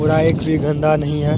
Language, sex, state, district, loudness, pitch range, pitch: Hindi, male, Bihar, Araria, -17 LUFS, 150-155 Hz, 155 Hz